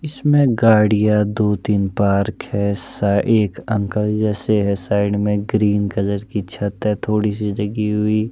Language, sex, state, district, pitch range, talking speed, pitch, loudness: Hindi, male, Himachal Pradesh, Shimla, 100-110 Hz, 160 wpm, 105 Hz, -18 LUFS